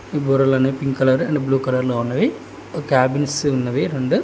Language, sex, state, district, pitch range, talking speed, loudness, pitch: Telugu, male, Telangana, Hyderabad, 130-145 Hz, 140 wpm, -19 LUFS, 135 Hz